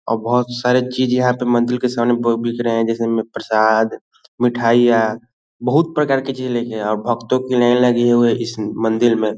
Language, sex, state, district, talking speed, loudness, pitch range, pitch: Hindi, male, Bihar, Saran, 205 wpm, -17 LUFS, 115-125 Hz, 120 Hz